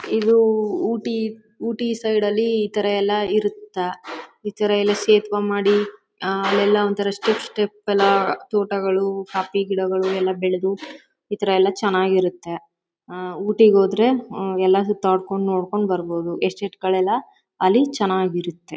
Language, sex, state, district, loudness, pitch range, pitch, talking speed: Kannada, female, Karnataka, Chamarajanagar, -20 LUFS, 190-210 Hz, 200 Hz, 130 wpm